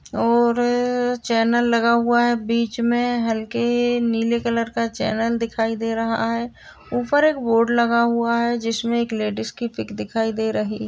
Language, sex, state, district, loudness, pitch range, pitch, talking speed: Hindi, female, Uttar Pradesh, Jalaun, -21 LUFS, 225-240 Hz, 235 Hz, 170 wpm